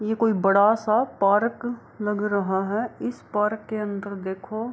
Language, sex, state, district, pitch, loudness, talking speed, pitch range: Hindi, female, Bihar, Kishanganj, 210 Hz, -24 LUFS, 165 wpm, 200-225 Hz